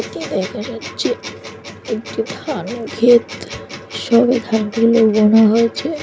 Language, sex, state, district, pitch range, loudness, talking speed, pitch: Bengali, female, West Bengal, North 24 Parganas, 220-240 Hz, -16 LUFS, 110 wpm, 230 Hz